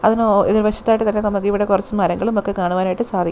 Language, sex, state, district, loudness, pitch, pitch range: Malayalam, female, Kerala, Thiruvananthapuram, -17 LUFS, 205 Hz, 195-215 Hz